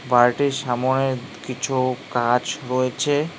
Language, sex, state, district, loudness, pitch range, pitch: Bengali, male, West Bengal, Cooch Behar, -22 LUFS, 125-135 Hz, 130 Hz